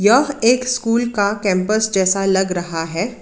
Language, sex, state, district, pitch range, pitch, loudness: Hindi, female, Karnataka, Bangalore, 190-235 Hz, 210 Hz, -17 LUFS